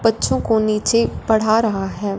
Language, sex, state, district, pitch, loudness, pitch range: Hindi, female, Punjab, Fazilka, 220 Hz, -18 LUFS, 205-225 Hz